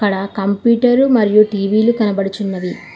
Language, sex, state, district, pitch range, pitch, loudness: Telugu, female, Telangana, Hyderabad, 195-230 Hz, 205 Hz, -15 LUFS